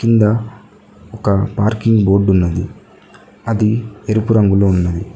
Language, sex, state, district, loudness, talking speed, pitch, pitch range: Telugu, male, Telangana, Mahabubabad, -15 LUFS, 105 wpm, 105 Hz, 100-110 Hz